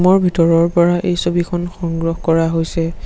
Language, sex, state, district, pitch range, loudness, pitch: Assamese, male, Assam, Sonitpur, 165-175 Hz, -16 LUFS, 170 Hz